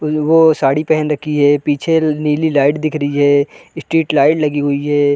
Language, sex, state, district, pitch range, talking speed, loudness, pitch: Hindi, male, Chhattisgarh, Bilaspur, 145-155 Hz, 210 wpm, -14 LUFS, 150 Hz